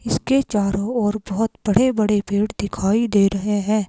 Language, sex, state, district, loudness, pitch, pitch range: Hindi, female, Himachal Pradesh, Shimla, -20 LUFS, 210 Hz, 205-225 Hz